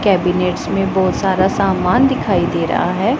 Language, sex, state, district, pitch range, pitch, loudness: Hindi, female, Punjab, Pathankot, 180-195 Hz, 190 Hz, -16 LUFS